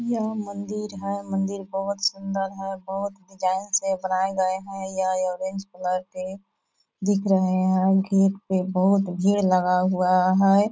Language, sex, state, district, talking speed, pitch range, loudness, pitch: Hindi, female, Bihar, Purnia, 150 wpm, 185-195 Hz, -24 LUFS, 195 Hz